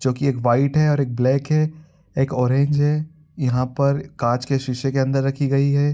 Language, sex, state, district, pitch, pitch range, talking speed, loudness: Hindi, male, Bihar, Araria, 140 Hz, 130-145 Hz, 220 wpm, -20 LUFS